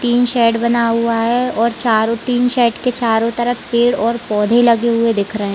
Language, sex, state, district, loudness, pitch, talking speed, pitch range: Hindi, female, Chhattisgarh, Raigarh, -15 LUFS, 235 Hz, 205 wpm, 230-240 Hz